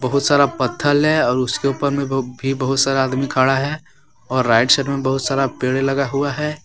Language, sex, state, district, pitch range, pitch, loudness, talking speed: Hindi, male, Jharkhand, Deoghar, 130-140 Hz, 135 Hz, -18 LUFS, 200 wpm